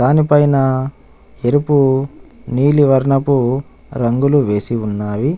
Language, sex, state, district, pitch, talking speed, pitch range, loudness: Telugu, male, Telangana, Adilabad, 135 Hz, 80 wpm, 125-145 Hz, -15 LUFS